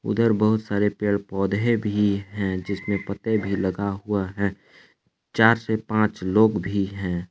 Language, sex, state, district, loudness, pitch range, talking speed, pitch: Hindi, male, Jharkhand, Palamu, -23 LUFS, 100-110 Hz, 155 wpm, 100 Hz